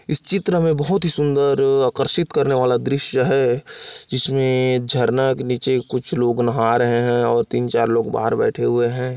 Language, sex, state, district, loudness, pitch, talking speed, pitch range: Hindi, male, Chhattisgarh, Kabirdham, -18 LUFS, 130 Hz, 165 wpm, 120-140 Hz